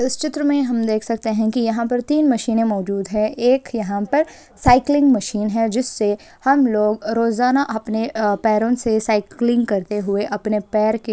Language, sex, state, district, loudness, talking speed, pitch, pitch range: Hindi, female, Rajasthan, Churu, -19 LUFS, 180 wpm, 225 Hz, 215-250 Hz